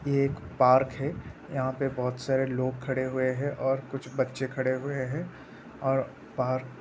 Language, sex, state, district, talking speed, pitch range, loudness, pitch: Hindi, male, Bihar, Araria, 185 wpm, 130-135 Hz, -29 LUFS, 130 Hz